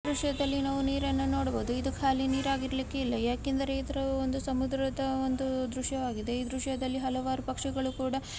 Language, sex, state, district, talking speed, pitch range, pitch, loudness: Kannada, female, Karnataka, Mysore, 150 wpm, 260-270 Hz, 265 Hz, -31 LUFS